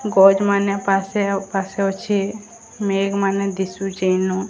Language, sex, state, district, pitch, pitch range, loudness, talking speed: Odia, female, Odisha, Sambalpur, 195 Hz, 195-200 Hz, -19 LUFS, 135 wpm